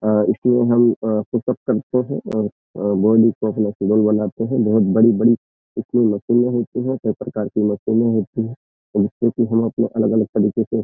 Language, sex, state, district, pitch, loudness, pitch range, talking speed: Hindi, male, Uttar Pradesh, Jyotiba Phule Nagar, 110 Hz, -18 LUFS, 105-120 Hz, 190 wpm